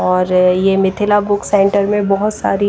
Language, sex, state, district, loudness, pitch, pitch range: Hindi, female, Odisha, Nuapada, -14 LUFS, 200 Hz, 190-205 Hz